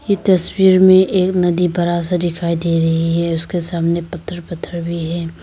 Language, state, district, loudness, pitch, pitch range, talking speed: Hindi, Arunachal Pradesh, Lower Dibang Valley, -16 LUFS, 175 Hz, 170-180 Hz, 190 wpm